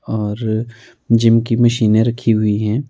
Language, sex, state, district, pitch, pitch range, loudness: Hindi, male, Himachal Pradesh, Shimla, 115 Hz, 110-115 Hz, -16 LUFS